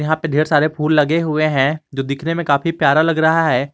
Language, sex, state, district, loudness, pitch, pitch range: Hindi, male, Jharkhand, Garhwa, -16 LUFS, 155 Hz, 145-160 Hz